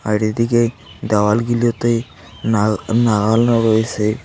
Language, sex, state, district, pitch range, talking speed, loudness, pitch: Bengali, male, West Bengal, Cooch Behar, 105-115 Hz, 70 wpm, -17 LUFS, 110 Hz